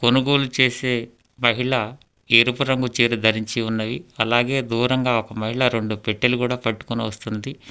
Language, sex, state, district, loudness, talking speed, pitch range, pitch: Telugu, male, Telangana, Hyderabad, -21 LUFS, 125 wpm, 110-125 Hz, 120 Hz